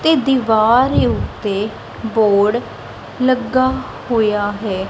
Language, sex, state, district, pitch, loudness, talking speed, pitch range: Punjabi, female, Punjab, Kapurthala, 225 Hz, -16 LUFS, 85 wpm, 205-255 Hz